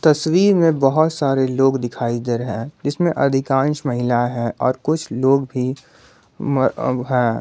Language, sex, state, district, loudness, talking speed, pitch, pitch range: Hindi, male, Jharkhand, Garhwa, -19 LUFS, 160 wpm, 135 Hz, 125-150 Hz